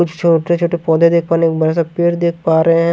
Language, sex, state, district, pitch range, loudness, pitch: Hindi, male, Haryana, Jhajjar, 165-170 Hz, -14 LUFS, 170 Hz